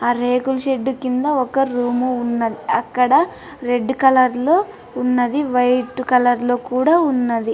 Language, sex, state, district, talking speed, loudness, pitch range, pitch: Telugu, female, Andhra Pradesh, Anantapur, 135 wpm, -18 LUFS, 245-265 Hz, 250 Hz